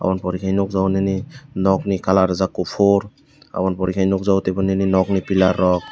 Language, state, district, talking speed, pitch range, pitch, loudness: Kokborok, Tripura, West Tripura, 185 wpm, 95-100 Hz, 95 Hz, -19 LUFS